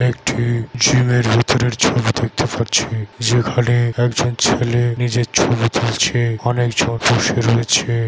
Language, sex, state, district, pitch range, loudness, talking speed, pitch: Bengali, male, West Bengal, Malda, 115-120 Hz, -16 LUFS, 120 wpm, 120 Hz